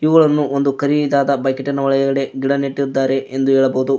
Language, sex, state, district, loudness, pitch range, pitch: Kannada, male, Karnataka, Koppal, -17 LUFS, 135-140 Hz, 135 Hz